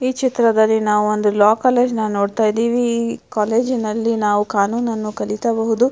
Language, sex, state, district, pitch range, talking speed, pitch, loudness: Kannada, female, Karnataka, Mysore, 210-235 Hz, 140 wpm, 225 Hz, -17 LUFS